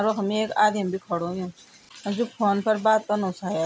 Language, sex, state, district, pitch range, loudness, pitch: Garhwali, female, Uttarakhand, Tehri Garhwal, 190-215 Hz, -24 LUFS, 205 Hz